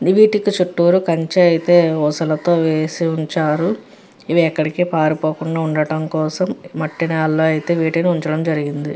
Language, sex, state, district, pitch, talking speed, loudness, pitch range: Telugu, female, Andhra Pradesh, Chittoor, 160 Hz, 125 wpm, -17 LUFS, 155-175 Hz